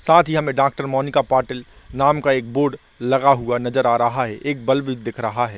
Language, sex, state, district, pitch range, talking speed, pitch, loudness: Hindi, male, Chhattisgarh, Korba, 120-140 Hz, 225 wpm, 130 Hz, -19 LUFS